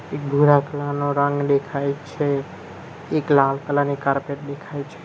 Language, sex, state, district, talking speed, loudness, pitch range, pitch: Gujarati, male, Gujarat, Valsad, 180 wpm, -21 LUFS, 140-145 Hz, 145 Hz